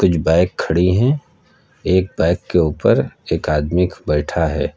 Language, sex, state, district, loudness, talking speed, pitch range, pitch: Hindi, male, Uttar Pradesh, Lucknow, -17 LUFS, 150 wpm, 75-95 Hz, 90 Hz